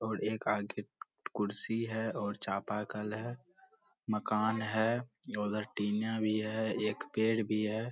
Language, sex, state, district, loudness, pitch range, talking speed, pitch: Hindi, male, Bihar, Purnia, -35 LUFS, 105-110 Hz, 150 wpm, 110 Hz